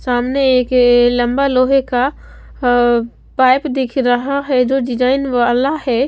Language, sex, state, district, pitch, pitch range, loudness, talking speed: Hindi, female, Bihar, West Champaran, 255 Hz, 245-270 Hz, -14 LUFS, 150 wpm